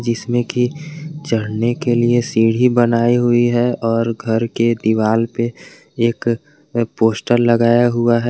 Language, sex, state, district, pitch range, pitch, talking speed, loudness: Hindi, male, Jharkhand, Garhwa, 115-120 Hz, 120 Hz, 135 wpm, -16 LUFS